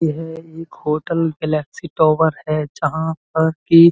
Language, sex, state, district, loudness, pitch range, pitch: Hindi, male, Uttar Pradesh, Muzaffarnagar, -19 LUFS, 155-165 Hz, 160 Hz